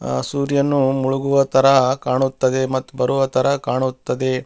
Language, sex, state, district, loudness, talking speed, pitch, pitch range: Kannada, male, Karnataka, Bellary, -18 LUFS, 120 wpm, 130 Hz, 130-135 Hz